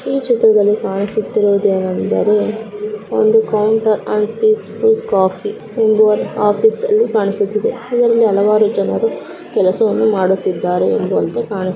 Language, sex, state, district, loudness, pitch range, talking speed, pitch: Kannada, female, Karnataka, Dakshina Kannada, -15 LUFS, 205-230 Hz, 110 wpm, 215 Hz